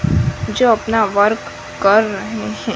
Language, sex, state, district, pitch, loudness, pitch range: Hindi, female, Gujarat, Gandhinagar, 215 Hz, -16 LUFS, 205-225 Hz